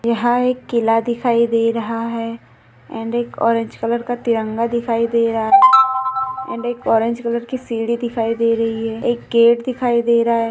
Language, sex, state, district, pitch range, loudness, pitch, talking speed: Hindi, female, Maharashtra, Pune, 230-240 Hz, -17 LUFS, 235 Hz, 190 wpm